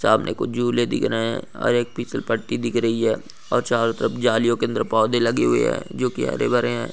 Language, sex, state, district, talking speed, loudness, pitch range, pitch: Hindi, male, Maharashtra, Chandrapur, 240 wpm, -22 LUFS, 115-120 Hz, 115 Hz